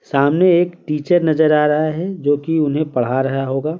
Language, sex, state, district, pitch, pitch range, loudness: Hindi, male, Bihar, Patna, 155 Hz, 140-165 Hz, -17 LUFS